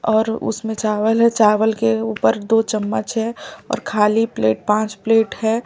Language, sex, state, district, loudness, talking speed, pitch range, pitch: Hindi, male, Delhi, New Delhi, -18 LUFS, 170 wpm, 210-225 Hz, 220 Hz